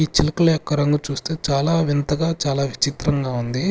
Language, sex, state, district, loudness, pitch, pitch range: Telugu, male, Andhra Pradesh, Sri Satya Sai, -20 LUFS, 145 Hz, 140-155 Hz